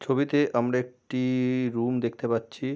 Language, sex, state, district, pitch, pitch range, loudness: Bengali, male, West Bengal, Jalpaiguri, 125 Hz, 120-130 Hz, -27 LUFS